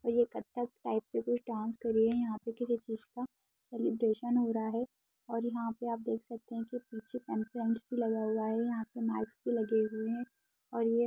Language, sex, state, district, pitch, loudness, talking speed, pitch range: Hindi, female, Bihar, Jahanabad, 230 Hz, -35 LUFS, 235 wpm, 225-240 Hz